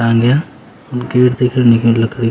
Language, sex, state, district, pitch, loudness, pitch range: Garhwali, male, Uttarakhand, Uttarkashi, 125 Hz, -13 LUFS, 115-125 Hz